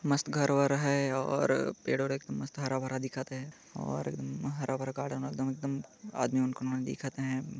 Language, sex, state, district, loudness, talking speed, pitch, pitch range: Chhattisgarhi, male, Chhattisgarh, Jashpur, -33 LUFS, 180 wpm, 135 Hz, 130-140 Hz